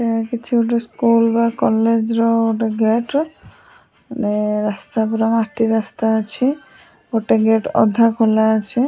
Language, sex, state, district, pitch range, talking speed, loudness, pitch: Odia, female, Odisha, Sambalpur, 220-230 Hz, 135 wpm, -17 LUFS, 225 Hz